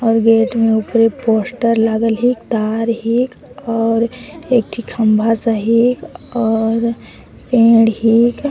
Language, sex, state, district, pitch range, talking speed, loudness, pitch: Sadri, female, Chhattisgarh, Jashpur, 225-235 Hz, 120 wpm, -15 LUFS, 230 Hz